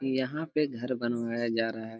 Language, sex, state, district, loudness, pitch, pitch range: Hindi, male, Jharkhand, Jamtara, -31 LUFS, 120 Hz, 115-135 Hz